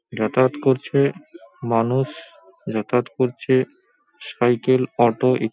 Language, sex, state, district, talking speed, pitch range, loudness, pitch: Bengali, male, West Bengal, Paschim Medinipur, 85 wpm, 120-135 Hz, -20 LUFS, 130 Hz